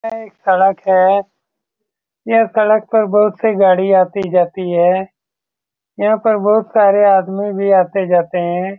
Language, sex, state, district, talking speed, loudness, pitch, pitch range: Hindi, male, Bihar, Saran, 135 wpm, -14 LUFS, 195 Hz, 185-210 Hz